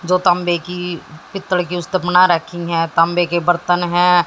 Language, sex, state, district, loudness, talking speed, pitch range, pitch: Hindi, female, Haryana, Jhajjar, -16 LUFS, 195 wpm, 170-180 Hz, 175 Hz